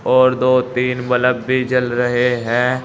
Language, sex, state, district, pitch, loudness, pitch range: Hindi, male, Uttar Pradesh, Saharanpur, 125 Hz, -16 LUFS, 125-130 Hz